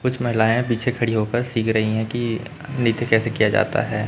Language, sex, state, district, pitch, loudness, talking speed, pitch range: Hindi, male, Chhattisgarh, Raipur, 115 Hz, -21 LUFS, 220 wpm, 110-125 Hz